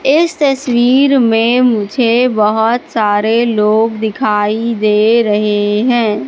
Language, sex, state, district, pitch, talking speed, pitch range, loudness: Hindi, female, Madhya Pradesh, Katni, 225 Hz, 105 wpm, 210-245 Hz, -12 LUFS